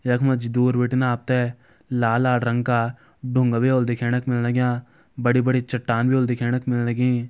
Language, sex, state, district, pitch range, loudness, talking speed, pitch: Garhwali, male, Uttarakhand, Uttarkashi, 120-125 Hz, -22 LUFS, 220 wpm, 125 Hz